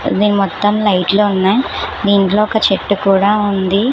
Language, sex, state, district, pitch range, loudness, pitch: Telugu, female, Telangana, Hyderabad, 195-210 Hz, -14 LUFS, 200 Hz